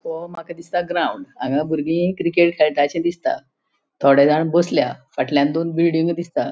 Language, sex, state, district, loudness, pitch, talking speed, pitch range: Konkani, female, Goa, North and South Goa, -19 LUFS, 170 Hz, 145 wpm, 155-175 Hz